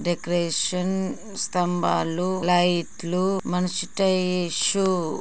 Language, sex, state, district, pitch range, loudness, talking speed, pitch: Telugu, female, Andhra Pradesh, Guntur, 175-190 Hz, -24 LUFS, 60 wpm, 180 Hz